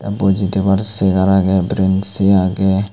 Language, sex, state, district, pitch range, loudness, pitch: Chakma, male, Tripura, Unakoti, 95-100 Hz, -15 LUFS, 95 Hz